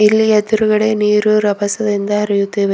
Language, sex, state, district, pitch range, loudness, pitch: Kannada, female, Karnataka, Bidar, 205-215 Hz, -14 LUFS, 210 Hz